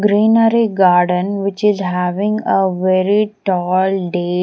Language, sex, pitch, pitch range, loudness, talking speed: English, female, 195 Hz, 180-210 Hz, -15 LUFS, 120 wpm